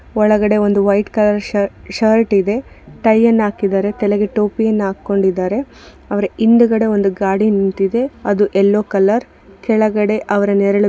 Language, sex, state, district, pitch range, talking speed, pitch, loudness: Kannada, female, Karnataka, Bellary, 200-220 Hz, 140 wpm, 205 Hz, -15 LUFS